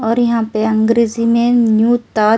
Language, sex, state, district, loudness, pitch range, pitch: Hindi, female, Delhi, New Delhi, -14 LUFS, 220-235 Hz, 230 Hz